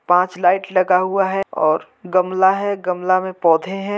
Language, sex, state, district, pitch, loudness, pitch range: Hindi, male, Chhattisgarh, Jashpur, 185 Hz, -18 LUFS, 180-195 Hz